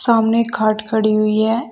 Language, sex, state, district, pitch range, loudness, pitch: Hindi, female, Uttar Pradesh, Shamli, 215-230 Hz, -16 LUFS, 220 Hz